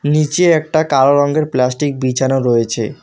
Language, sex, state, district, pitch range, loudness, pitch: Bengali, male, West Bengal, Alipurduar, 130-155 Hz, -14 LUFS, 145 Hz